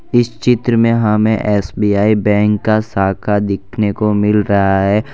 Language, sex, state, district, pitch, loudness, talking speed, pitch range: Hindi, male, Gujarat, Valsad, 105 Hz, -14 LUFS, 150 wpm, 100-110 Hz